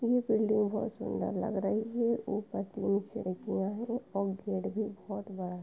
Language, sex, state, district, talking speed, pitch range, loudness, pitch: Hindi, female, Uttar Pradesh, Etah, 180 wpm, 195-225 Hz, -33 LUFS, 210 Hz